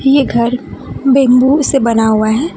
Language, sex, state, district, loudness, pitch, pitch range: Hindi, female, West Bengal, Alipurduar, -11 LUFS, 255 Hz, 235-275 Hz